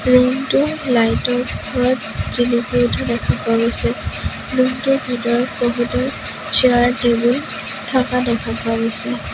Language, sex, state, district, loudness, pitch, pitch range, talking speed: Assamese, female, Assam, Sonitpur, -18 LUFS, 245 Hz, 235-255 Hz, 130 wpm